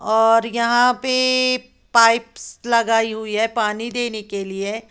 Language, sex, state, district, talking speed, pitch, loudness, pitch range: Hindi, female, Uttar Pradesh, Lalitpur, 135 wpm, 230 Hz, -18 LUFS, 220-240 Hz